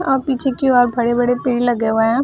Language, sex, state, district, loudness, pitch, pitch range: Hindi, female, Bihar, Samastipur, -16 LUFS, 245 Hz, 240-265 Hz